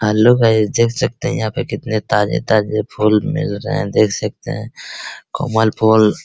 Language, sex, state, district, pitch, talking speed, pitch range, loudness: Hindi, male, Bihar, Araria, 110 Hz, 180 wpm, 110-125 Hz, -16 LUFS